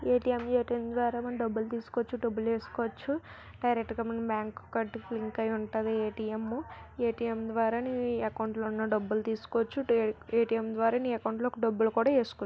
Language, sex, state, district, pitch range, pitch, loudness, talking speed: Telugu, female, Andhra Pradesh, Visakhapatnam, 220-240 Hz, 230 Hz, -32 LUFS, 155 wpm